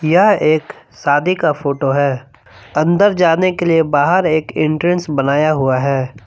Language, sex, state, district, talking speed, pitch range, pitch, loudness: Hindi, male, Jharkhand, Palamu, 155 wpm, 135-170 Hz, 150 Hz, -15 LUFS